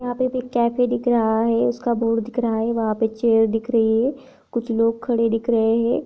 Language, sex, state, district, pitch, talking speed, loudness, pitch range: Hindi, female, Chhattisgarh, Kabirdham, 230 Hz, 235 wpm, -20 LUFS, 225-245 Hz